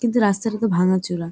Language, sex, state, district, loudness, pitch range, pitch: Bengali, female, West Bengal, Jalpaiguri, -20 LUFS, 180-225 Hz, 200 Hz